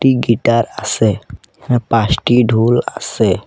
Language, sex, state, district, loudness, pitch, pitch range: Bengali, male, Assam, Kamrup Metropolitan, -15 LUFS, 115 Hz, 110-120 Hz